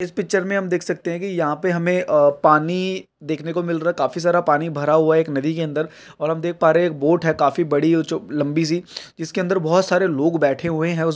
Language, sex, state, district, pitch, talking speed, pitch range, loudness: Hindi, male, Uttar Pradesh, Ghazipur, 165 Hz, 270 wpm, 155-180 Hz, -19 LUFS